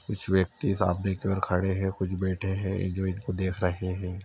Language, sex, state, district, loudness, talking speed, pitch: Hindi, male, Uttar Pradesh, Etah, -29 LUFS, 210 wpm, 95 Hz